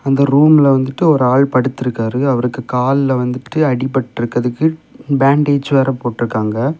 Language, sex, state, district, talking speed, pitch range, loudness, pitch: Tamil, male, Tamil Nadu, Kanyakumari, 115 wpm, 125-140 Hz, -14 LUFS, 135 Hz